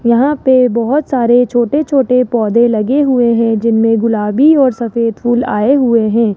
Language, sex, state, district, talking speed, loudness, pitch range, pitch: Hindi, male, Rajasthan, Jaipur, 170 wpm, -12 LUFS, 230-260 Hz, 240 Hz